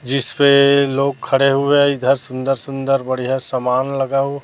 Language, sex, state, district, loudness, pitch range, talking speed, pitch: Hindi, male, Chhattisgarh, Raipur, -16 LUFS, 130-140 Hz, 160 wpm, 135 Hz